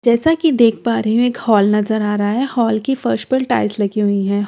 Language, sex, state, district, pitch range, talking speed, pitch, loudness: Hindi, female, Bihar, Katihar, 210-245 Hz, 295 wpm, 225 Hz, -16 LUFS